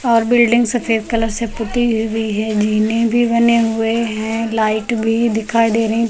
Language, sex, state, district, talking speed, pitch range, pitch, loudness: Hindi, female, Uttar Pradesh, Lucknow, 175 wpm, 220-235 Hz, 225 Hz, -16 LUFS